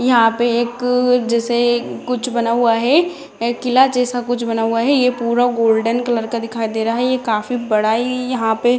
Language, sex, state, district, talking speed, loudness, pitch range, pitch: Hindi, female, Bihar, Jamui, 205 wpm, -17 LUFS, 230-250 Hz, 240 Hz